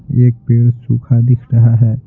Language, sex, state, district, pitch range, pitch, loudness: Hindi, male, Bihar, Patna, 120-125 Hz, 120 Hz, -12 LUFS